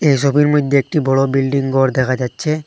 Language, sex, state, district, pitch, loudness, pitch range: Bengali, male, Assam, Hailakandi, 140 Hz, -15 LUFS, 135-145 Hz